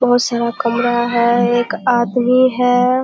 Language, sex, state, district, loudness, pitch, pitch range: Hindi, female, Bihar, Kishanganj, -15 LUFS, 240 Hz, 240-250 Hz